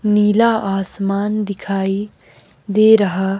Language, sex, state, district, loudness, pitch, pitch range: Hindi, female, Himachal Pradesh, Shimla, -16 LUFS, 200 Hz, 195-210 Hz